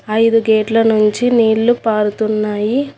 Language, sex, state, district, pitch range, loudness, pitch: Telugu, female, Telangana, Hyderabad, 215-230 Hz, -14 LUFS, 220 Hz